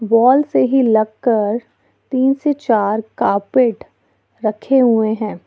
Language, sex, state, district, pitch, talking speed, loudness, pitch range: Hindi, female, Jharkhand, Ranchi, 230 Hz, 130 wpm, -16 LUFS, 215-260 Hz